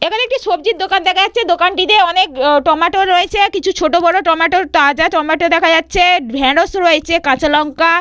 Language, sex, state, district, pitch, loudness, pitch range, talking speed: Bengali, female, West Bengal, Purulia, 345 Hz, -12 LUFS, 325-380 Hz, 165 wpm